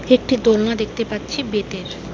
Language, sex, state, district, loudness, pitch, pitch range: Bengali, female, West Bengal, Alipurduar, -20 LUFS, 220 Hz, 205-240 Hz